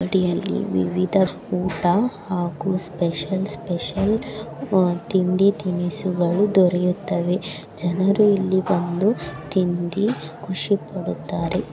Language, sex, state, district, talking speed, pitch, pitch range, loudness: Kannada, female, Karnataka, Bellary, 85 wpm, 185 Hz, 175-195 Hz, -22 LUFS